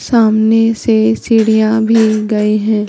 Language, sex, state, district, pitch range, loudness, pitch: Hindi, female, Madhya Pradesh, Katni, 215-225 Hz, -12 LUFS, 220 Hz